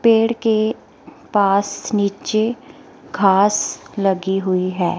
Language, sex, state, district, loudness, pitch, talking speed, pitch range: Hindi, female, Himachal Pradesh, Shimla, -18 LUFS, 205 Hz, 95 wpm, 195-225 Hz